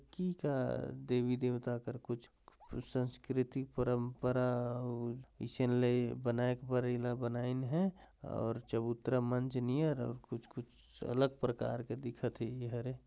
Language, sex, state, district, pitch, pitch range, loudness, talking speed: Chhattisgarhi, male, Chhattisgarh, Jashpur, 125 Hz, 120-130 Hz, -37 LUFS, 130 wpm